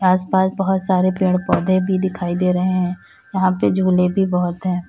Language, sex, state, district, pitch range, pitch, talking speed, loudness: Hindi, female, Uttar Pradesh, Lalitpur, 180-190 Hz, 185 Hz, 195 wpm, -18 LUFS